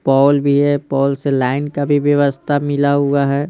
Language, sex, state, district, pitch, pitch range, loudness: Hindi, male, Bihar, Patna, 140 Hz, 140-145 Hz, -15 LUFS